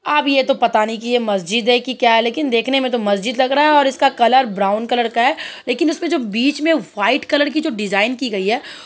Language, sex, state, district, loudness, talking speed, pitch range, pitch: Hindi, female, Uttar Pradesh, Budaun, -16 LUFS, 280 wpm, 225-285 Hz, 250 Hz